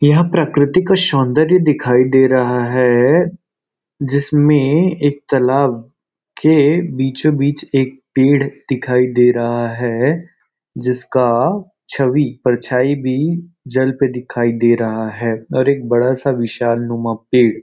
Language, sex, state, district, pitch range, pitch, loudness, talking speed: Hindi, male, Chhattisgarh, Rajnandgaon, 125-145 Hz, 130 Hz, -15 LUFS, 125 wpm